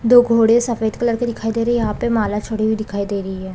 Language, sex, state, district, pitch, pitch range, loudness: Hindi, female, Chhattisgarh, Balrampur, 225 Hz, 210-235 Hz, -18 LUFS